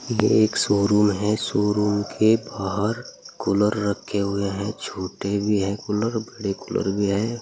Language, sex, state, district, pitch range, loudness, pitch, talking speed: Hindi, male, Uttar Pradesh, Saharanpur, 100-105 Hz, -23 LUFS, 105 Hz, 145 wpm